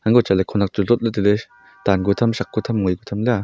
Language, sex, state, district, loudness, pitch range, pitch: Wancho, male, Arunachal Pradesh, Longding, -20 LUFS, 100-115 Hz, 105 Hz